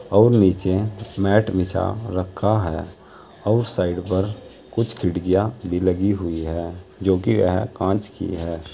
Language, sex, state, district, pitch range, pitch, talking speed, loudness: Hindi, male, Uttar Pradesh, Saharanpur, 90-105 Hz, 95 Hz, 135 wpm, -21 LUFS